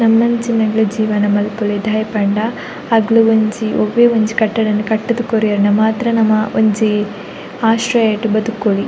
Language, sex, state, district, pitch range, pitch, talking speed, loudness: Tulu, female, Karnataka, Dakshina Kannada, 210-225 Hz, 220 Hz, 120 wpm, -15 LUFS